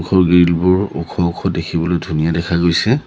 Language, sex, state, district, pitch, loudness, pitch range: Assamese, male, Assam, Sonitpur, 85 Hz, -16 LUFS, 85-90 Hz